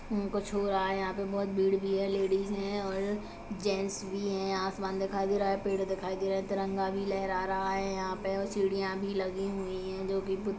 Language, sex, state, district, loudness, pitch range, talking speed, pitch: Hindi, female, Chhattisgarh, Kabirdham, -33 LUFS, 190-195 Hz, 230 wpm, 195 Hz